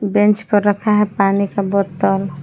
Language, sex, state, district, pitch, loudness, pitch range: Hindi, female, Jharkhand, Palamu, 200 Hz, -16 LUFS, 195-205 Hz